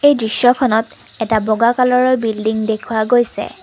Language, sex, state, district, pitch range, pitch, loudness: Assamese, female, Assam, Kamrup Metropolitan, 220-250 Hz, 225 Hz, -15 LUFS